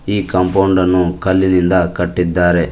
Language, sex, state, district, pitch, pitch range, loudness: Kannada, male, Karnataka, Koppal, 90 Hz, 90-95 Hz, -14 LUFS